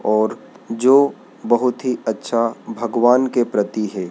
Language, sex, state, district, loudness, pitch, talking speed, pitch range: Hindi, male, Madhya Pradesh, Dhar, -18 LUFS, 115 Hz, 130 wpm, 110-125 Hz